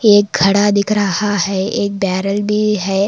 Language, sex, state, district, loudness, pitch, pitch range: Hindi, female, Karnataka, Koppal, -15 LUFS, 200 Hz, 195-205 Hz